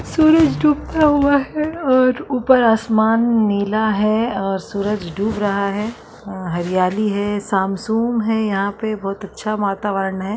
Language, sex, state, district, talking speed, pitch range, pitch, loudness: Hindi, female, Uttarakhand, Tehri Garhwal, 145 wpm, 200-235 Hz, 215 Hz, -18 LUFS